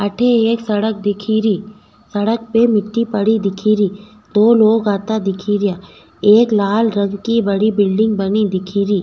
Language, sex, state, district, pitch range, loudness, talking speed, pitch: Rajasthani, female, Rajasthan, Nagaur, 200-220 Hz, -16 LUFS, 145 wpm, 210 Hz